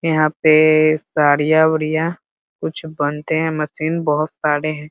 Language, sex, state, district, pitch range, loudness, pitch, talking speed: Hindi, male, Bihar, Muzaffarpur, 150-160 Hz, -17 LUFS, 155 Hz, 120 wpm